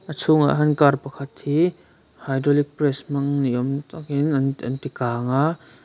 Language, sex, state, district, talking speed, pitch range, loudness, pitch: Mizo, male, Mizoram, Aizawl, 165 wpm, 135-150 Hz, -22 LUFS, 140 Hz